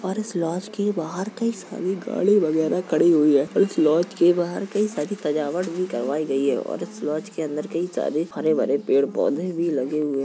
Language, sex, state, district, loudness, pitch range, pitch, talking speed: Hindi, female, Uttar Pradesh, Jalaun, -23 LUFS, 150-190 Hz, 170 Hz, 215 wpm